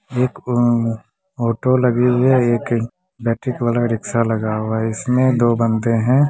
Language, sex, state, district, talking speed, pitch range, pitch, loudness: Hindi, female, Bihar, Muzaffarpur, 150 wpm, 115-125 Hz, 120 Hz, -18 LUFS